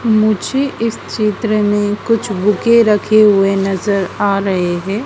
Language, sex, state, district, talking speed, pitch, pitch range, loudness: Hindi, female, Madhya Pradesh, Dhar, 140 wpm, 210 Hz, 195-220 Hz, -14 LUFS